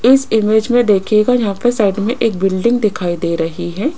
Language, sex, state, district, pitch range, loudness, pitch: Hindi, female, Rajasthan, Jaipur, 190-240 Hz, -15 LUFS, 215 Hz